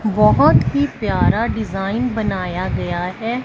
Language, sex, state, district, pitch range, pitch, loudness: Hindi, female, Punjab, Fazilka, 175-220 Hz, 195 Hz, -18 LUFS